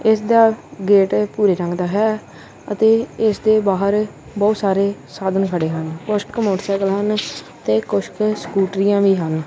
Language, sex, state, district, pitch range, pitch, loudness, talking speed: Punjabi, male, Punjab, Kapurthala, 190-215 Hz, 200 Hz, -18 LUFS, 165 wpm